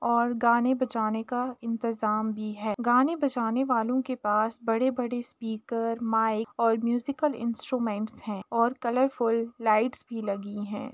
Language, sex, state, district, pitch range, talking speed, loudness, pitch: Hindi, female, Uttar Pradesh, Jalaun, 220-250 Hz, 130 wpm, -28 LUFS, 230 Hz